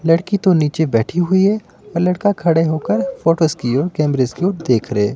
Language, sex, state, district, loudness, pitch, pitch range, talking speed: Hindi, male, Himachal Pradesh, Shimla, -17 LUFS, 165 Hz, 145-185 Hz, 220 wpm